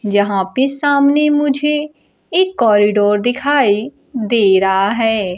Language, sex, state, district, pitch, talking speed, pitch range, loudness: Hindi, female, Bihar, Kaimur, 235 Hz, 110 wpm, 205-285 Hz, -14 LUFS